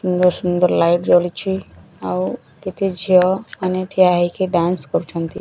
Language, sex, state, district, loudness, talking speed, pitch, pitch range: Odia, male, Odisha, Nuapada, -18 LUFS, 110 wpm, 180 Hz, 170-185 Hz